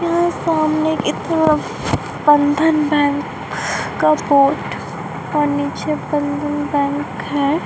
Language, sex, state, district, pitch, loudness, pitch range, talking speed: Hindi, female, Bihar, Begusarai, 295 Hz, -18 LUFS, 285-310 Hz, 100 wpm